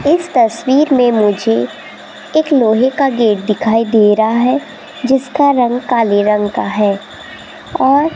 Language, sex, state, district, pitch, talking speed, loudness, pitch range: Hindi, female, Rajasthan, Jaipur, 240 Hz, 145 wpm, -13 LUFS, 220-275 Hz